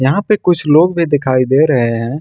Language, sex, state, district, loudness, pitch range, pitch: Hindi, male, Jharkhand, Ranchi, -13 LUFS, 130-170 Hz, 145 Hz